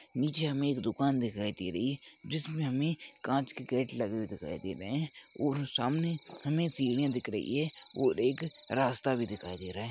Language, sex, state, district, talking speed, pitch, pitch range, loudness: Hindi, male, Rajasthan, Churu, 200 wpm, 135 Hz, 120-150 Hz, -33 LUFS